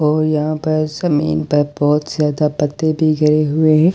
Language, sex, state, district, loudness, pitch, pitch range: Hindi, male, Delhi, New Delhi, -16 LUFS, 150 Hz, 150-155 Hz